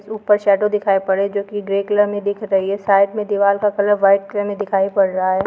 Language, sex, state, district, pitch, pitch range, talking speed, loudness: Hindi, female, Bihar, Lakhisarai, 200 Hz, 195-205 Hz, 275 wpm, -17 LUFS